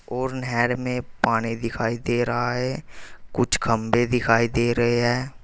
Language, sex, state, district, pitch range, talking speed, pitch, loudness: Hindi, male, Uttar Pradesh, Saharanpur, 115-125 Hz, 155 wpm, 120 Hz, -23 LUFS